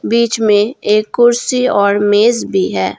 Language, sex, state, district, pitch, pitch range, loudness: Hindi, female, Jharkhand, Garhwa, 215 Hz, 205-235 Hz, -13 LUFS